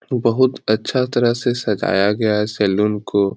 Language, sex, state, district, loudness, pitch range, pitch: Hindi, male, Bihar, Lakhisarai, -18 LUFS, 105-125 Hz, 110 Hz